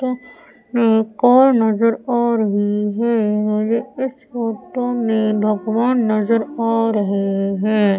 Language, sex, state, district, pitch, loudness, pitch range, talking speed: Hindi, female, Madhya Pradesh, Umaria, 225 Hz, -18 LUFS, 215-240 Hz, 120 wpm